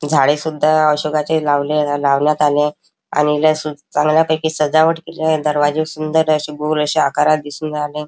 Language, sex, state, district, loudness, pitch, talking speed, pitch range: Marathi, male, Maharashtra, Chandrapur, -16 LUFS, 150 Hz, 140 wpm, 150-155 Hz